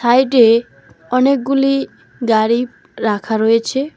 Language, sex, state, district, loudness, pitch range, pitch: Bengali, female, West Bengal, Alipurduar, -15 LUFS, 225-265 Hz, 240 Hz